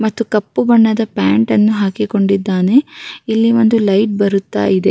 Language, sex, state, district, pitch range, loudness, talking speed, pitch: Kannada, female, Karnataka, Raichur, 195-225 Hz, -14 LUFS, 135 wpm, 210 Hz